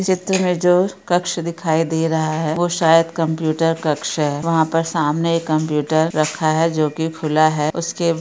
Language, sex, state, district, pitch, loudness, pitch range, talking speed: Hindi, female, Jharkhand, Sahebganj, 165 Hz, -18 LUFS, 155-170 Hz, 195 wpm